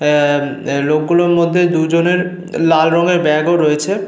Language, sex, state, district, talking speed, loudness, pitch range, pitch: Bengali, male, West Bengal, Paschim Medinipur, 160 wpm, -14 LUFS, 150-175 Hz, 165 Hz